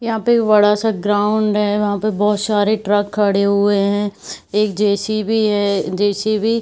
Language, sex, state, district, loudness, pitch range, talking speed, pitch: Hindi, female, Bihar, Saharsa, -16 LUFS, 205-215 Hz, 180 wpm, 210 Hz